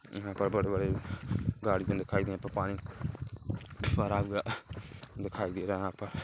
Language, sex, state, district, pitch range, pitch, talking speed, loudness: Hindi, male, Chhattisgarh, Kabirdham, 100-110 Hz, 100 Hz, 180 wpm, -34 LUFS